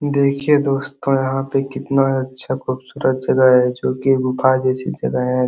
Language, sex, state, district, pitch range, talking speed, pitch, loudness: Hindi, male, Uttar Pradesh, Hamirpur, 130-135 Hz, 155 wpm, 130 Hz, -18 LUFS